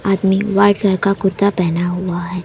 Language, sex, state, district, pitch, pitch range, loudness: Hindi, female, Maharashtra, Mumbai Suburban, 195 Hz, 180-200 Hz, -16 LUFS